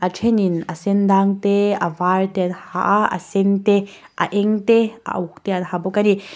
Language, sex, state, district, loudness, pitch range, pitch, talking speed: Mizo, female, Mizoram, Aizawl, -19 LUFS, 180-205 Hz, 195 Hz, 245 wpm